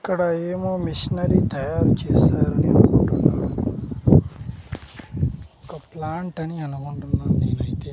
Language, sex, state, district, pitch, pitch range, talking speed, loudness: Telugu, male, Andhra Pradesh, Sri Satya Sai, 160 Hz, 140-175 Hz, 85 wpm, -21 LUFS